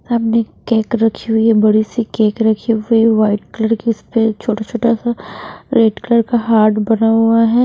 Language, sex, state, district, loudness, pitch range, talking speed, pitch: Hindi, female, Bihar, West Champaran, -14 LUFS, 220-230 Hz, 195 wpm, 225 Hz